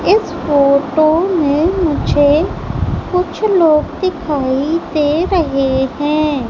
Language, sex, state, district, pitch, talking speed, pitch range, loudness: Hindi, female, Madhya Pradesh, Umaria, 305 Hz, 90 wpm, 285-345 Hz, -14 LUFS